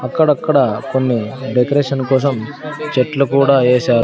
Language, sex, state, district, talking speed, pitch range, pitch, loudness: Telugu, male, Andhra Pradesh, Sri Satya Sai, 105 wpm, 125-140 Hz, 135 Hz, -15 LUFS